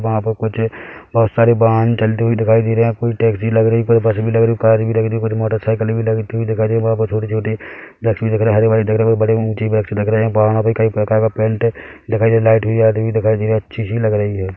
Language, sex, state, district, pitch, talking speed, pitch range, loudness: Hindi, male, Chhattisgarh, Bilaspur, 110 Hz, 310 wpm, 110-115 Hz, -15 LUFS